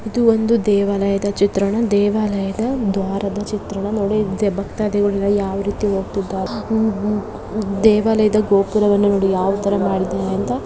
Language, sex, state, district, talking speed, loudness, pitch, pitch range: Kannada, female, Karnataka, Mysore, 95 wpm, -18 LUFS, 205 Hz, 195-215 Hz